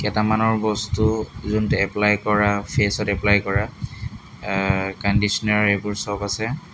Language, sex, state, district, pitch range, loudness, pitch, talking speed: Assamese, male, Assam, Hailakandi, 100-110 Hz, -21 LUFS, 105 Hz, 115 wpm